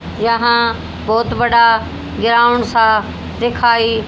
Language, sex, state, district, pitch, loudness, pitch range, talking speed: Hindi, female, Haryana, Jhajjar, 230 Hz, -14 LUFS, 225-235 Hz, 90 wpm